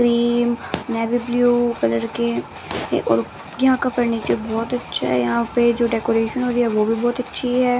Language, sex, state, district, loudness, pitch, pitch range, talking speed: Hindi, female, Bihar, West Champaran, -20 LUFS, 235 Hz, 225-245 Hz, 185 wpm